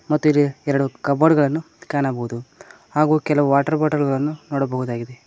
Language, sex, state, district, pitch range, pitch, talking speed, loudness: Kannada, male, Karnataka, Koppal, 135-155 Hz, 145 Hz, 125 wpm, -20 LUFS